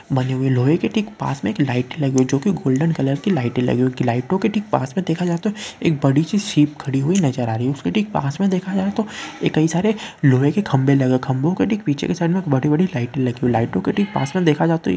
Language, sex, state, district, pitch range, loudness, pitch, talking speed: Hindi, male, West Bengal, Purulia, 130-190 Hz, -19 LUFS, 150 Hz, 290 wpm